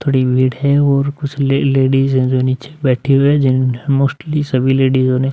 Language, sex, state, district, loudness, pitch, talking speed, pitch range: Hindi, male, Uttar Pradesh, Muzaffarnagar, -14 LUFS, 135 Hz, 215 wpm, 130-140 Hz